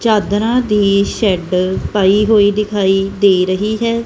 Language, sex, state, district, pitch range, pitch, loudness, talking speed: Punjabi, female, Punjab, Kapurthala, 195-215 Hz, 205 Hz, -14 LUFS, 135 wpm